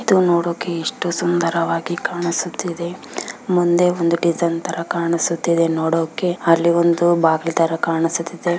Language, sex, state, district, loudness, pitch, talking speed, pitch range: Kannada, female, Karnataka, Bellary, -19 LUFS, 170 Hz, 110 wpm, 165-175 Hz